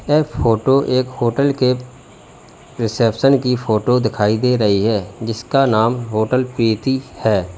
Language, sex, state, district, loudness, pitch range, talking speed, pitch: Hindi, male, Uttar Pradesh, Lalitpur, -17 LUFS, 110-130 Hz, 135 wpm, 120 Hz